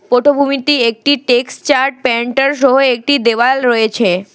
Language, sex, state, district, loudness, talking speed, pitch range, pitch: Bengali, female, West Bengal, Alipurduar, -12 LUFS, 110 wpm, 240-275 Hz, 260 Hz